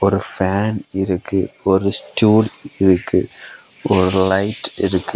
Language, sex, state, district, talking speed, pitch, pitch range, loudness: Tamil, male, Tamil Nadu, Kanyakumari, 105 wpm, 95 Hz, 95-100 Hz, -18 LUFS